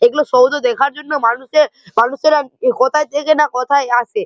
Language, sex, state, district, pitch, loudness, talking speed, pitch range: Bengali, male, West Bengal, Malda, 285 Hz, -15 LUFS, 155 wpm, 250-300 Hz